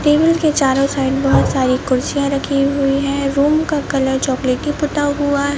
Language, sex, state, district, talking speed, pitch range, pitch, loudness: Hindi, male, Madhya Pradesh, Bhopal, 170 wpm, 270-290 Hz, 280 Hz, -16 LUFS